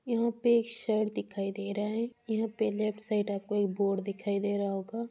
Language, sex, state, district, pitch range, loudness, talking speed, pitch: Hindi, female, Rajasthan, Churu, 200-230 Hz, -31 LUFS, 225 wpm, 210 Hz